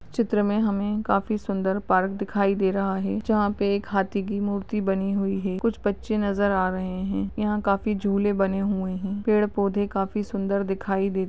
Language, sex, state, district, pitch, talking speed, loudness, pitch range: Hindi, female, Uttar Pradesh, Ghazipur, 200 Hz, 200 wpm, -25 LUFS, 195-205 Hz